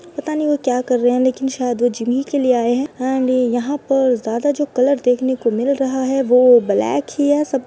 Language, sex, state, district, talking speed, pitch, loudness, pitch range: Hindi, female, Bihar, Gaya, 260 wpm, 260 Hz, -17 LUFS, 245-275 Hz